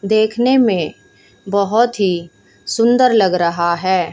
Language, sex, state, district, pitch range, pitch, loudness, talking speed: Hindi, male, Haryana, Charkhi Dadri, 170-230 Hz, 195 Hz, -15 LUFS, 115 wpm